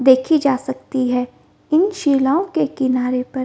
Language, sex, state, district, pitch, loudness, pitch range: Hindi, female, Bihar, Gopalganj, 265 Hz, -18 LUFS, 255-305 Hz